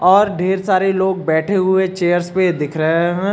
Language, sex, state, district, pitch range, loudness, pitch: Hindi, male, Uttar Pradesh, Lucknow, 175-190 Hz, -16 LUFS, 185 Hz